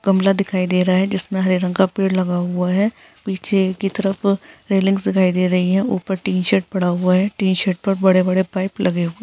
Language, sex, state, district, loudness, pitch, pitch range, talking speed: Hindi, female, Bihar, Jahanabad, -18 LUFS, 190 Hz, 185-195 Hz, 215 wpm